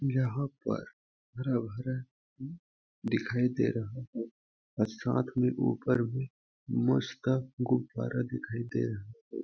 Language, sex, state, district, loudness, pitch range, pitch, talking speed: Hindi, male, Chhattisgarh, Balrampur, -33 LUFS, 110-130 Hz, 125 Hz, 115 wpm